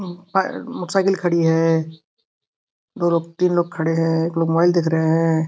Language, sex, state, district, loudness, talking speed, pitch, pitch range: Hindi, male, Uttar Pradesh, Gorakhpur, -19 LUFS, 185 wpm, 170 Hz, 165-180 Hz